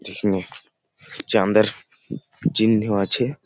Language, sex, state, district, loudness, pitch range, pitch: Bengali, male, West Bengal, Malda, -21 LUFS, 100-110 Hz, 110 Hz